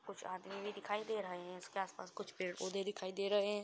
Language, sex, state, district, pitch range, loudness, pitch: Hindi, female, Bihar, Saran, 185-205 Hz, -42 LUFS, 195 Hz